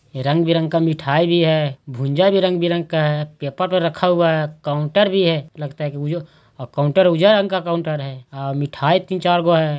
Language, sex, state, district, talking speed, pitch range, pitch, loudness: Hindi, male, Bihar, Jahanabad, 215 wpm, 145-175 Hz, 160 Hz, -18 LUFS